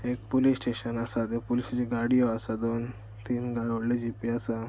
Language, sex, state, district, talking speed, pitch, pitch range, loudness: Konkani, male, Goa, North and South Goa, 190 wpm, 115 Hz, 115-120 Hz, -29 LUFS